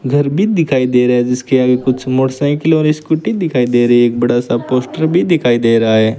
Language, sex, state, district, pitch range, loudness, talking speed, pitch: Hindi, male, Rajasthan, Bikaner, 120-155 Hz, -13 LUFS, 240 wpm, 130 Hz